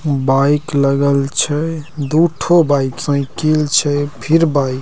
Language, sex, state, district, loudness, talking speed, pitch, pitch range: Maithili, male, Bihar, Purnia, -15 LUFS, 135 wpm, 145 Hz, 140-155 Hz